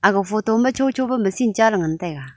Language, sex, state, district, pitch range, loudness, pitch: Wancho, female, Arunachal Pradesh, Longding, 190-250 Hz, -19 LUFS, 215 Hz